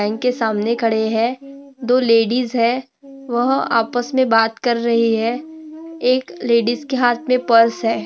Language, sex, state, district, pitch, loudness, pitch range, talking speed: Hindi, female, Maharashtra, Dhule, 240 Hz, -17 LUFS, 230-260 Hz, 165 wpm